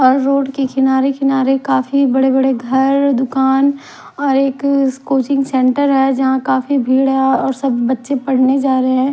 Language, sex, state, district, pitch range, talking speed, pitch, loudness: Hindi, female, Odisha, Khordha, 265-275 Hz, 170 wpm, 265 Hz, -14 LUFS